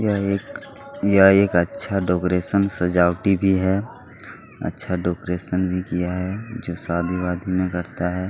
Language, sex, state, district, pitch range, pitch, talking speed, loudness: Hindi, male, Chhattisgarh, Kabirdham, 90-100 Hz, 90 Hz, 135 wpm, -21 LUFS